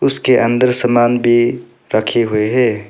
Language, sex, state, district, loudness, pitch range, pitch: Hindi, male, Arunachal Pradesh, Papum Pare, -14 LUFS, 115-125 Hz, 120 Hz